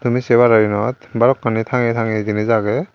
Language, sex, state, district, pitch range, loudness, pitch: Chakma, male, Tripura, Dhalai, 110-125 Hz, -16 LUFS, 115 Hz